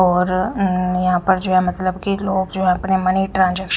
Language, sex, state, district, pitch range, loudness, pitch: Hindi, female, Haryana, Rohtak, 185-190 Hz, -18 LUFS, 185 Hz